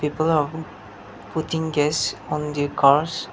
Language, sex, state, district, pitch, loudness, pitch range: English, male, Nagaland, Dimapur, 150 Hz, -22 LUFS, 140-160 Hz